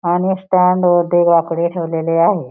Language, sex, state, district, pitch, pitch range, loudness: Marathi, female, Maharashtra, Pune, 175 Hz, 170-180 Hz, -15 LUFS